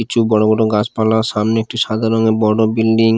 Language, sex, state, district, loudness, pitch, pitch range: Bengali, male, Odisha, Khordha, -15 LUFS, 110 Hz, 110-115 Hz